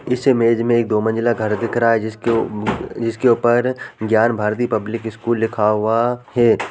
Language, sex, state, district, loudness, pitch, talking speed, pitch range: Hindi, male, Bihar, Darbhanga, -18 LUFS, 115 Hz, 195 wpm, 110-120 Hz